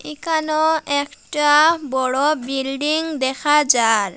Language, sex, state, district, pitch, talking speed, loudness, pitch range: Bengali, female, Assam, Hailakandi, 295 Hz, 100 wpm, -18 LUFS, 265-310 Hz